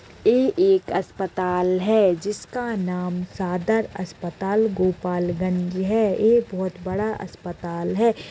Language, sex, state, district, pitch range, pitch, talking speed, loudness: Hindi, female, Uttar Pradesh, Deoria, 180-215 Hz, 185 Hz, 115 wpm, -23 LUFS